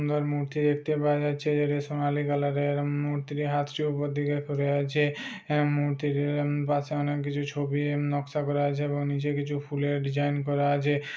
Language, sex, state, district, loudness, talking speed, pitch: Bajjika, male, Bihar, Vaishali, -28 LUFS, 170 wpm, 145 Hz